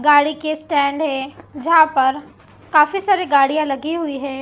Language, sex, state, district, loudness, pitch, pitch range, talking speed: Hindi, female, Maharashtra, Gondia, -17 LUFS, 295 Hz, 280-315 Hz, 165 wpm